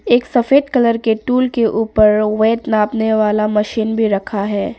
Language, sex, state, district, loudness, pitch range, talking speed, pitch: Hindi, female, Arunachal Pradesh, Papum Pare, -15 LUFS, 215-235 Hz, 175 wpm, 220 Hz